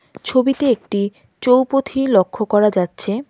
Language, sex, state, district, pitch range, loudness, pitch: Bengali, female, West Bengal, Cooch Behar, 205-265 Hz, -17 LUFS, 235 Hz